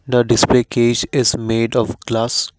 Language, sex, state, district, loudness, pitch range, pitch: English, male, Assam, Kamrup Metropolitan, -16 LUFS, 115-125 Hz, 120 Hz